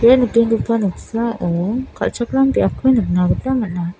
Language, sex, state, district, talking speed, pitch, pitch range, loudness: Garo, female, Meghalaya, South Garo Hills, 120 wpm, 230 Hz, 190-250 Hz, -17 LUFS